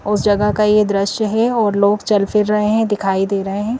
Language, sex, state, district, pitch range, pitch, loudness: Hindi, female, Madhya Pradesh, Bhopal, 200-215 Hz, 210 Hz, -16 LUFS